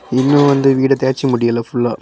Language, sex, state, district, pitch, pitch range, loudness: Tamil, male, Tamil Nadu, Kanyakumari, 130 Hz, 120-135 Hz, -14 LUFS